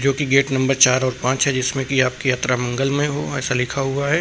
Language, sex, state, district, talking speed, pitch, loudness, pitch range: Hindi, male, Uttar Pradesh, Lucknow, 255 wpm, 135 Hz, -19 LUFS, 130-140 Hz